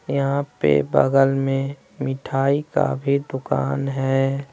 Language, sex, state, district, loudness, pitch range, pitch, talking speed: Hindi, male, Bihar, West Champaran, -21 LUFS, 135-140 Hz, 135 Hz, 120 wpm